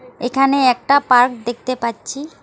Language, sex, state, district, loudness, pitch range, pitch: Bengali, female, West Bengal, Alipurduar, -16 LUFS, 245-270 Hz, 255 Hz